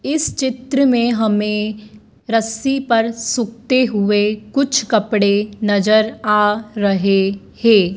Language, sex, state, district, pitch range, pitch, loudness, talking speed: Hindi, female, Madhya Pradesh, Dhar, 210-235 Hz, 215 Hz, -17 LUFS, 105 wpm